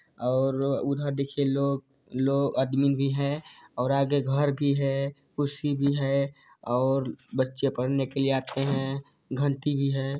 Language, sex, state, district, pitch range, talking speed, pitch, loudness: Hindi, male, Chhattisgarh, Sarguja, 135-140 Hz, 160 wpm, 140 Hz, -27 LUFS